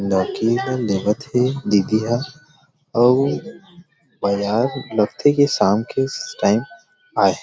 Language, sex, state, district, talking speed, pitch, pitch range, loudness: Chhattisgarhi, male, Chhattisgarh, Rajnandgaon, 120 wpm, 130 Hz, 110-145 Hz, -19 LUFS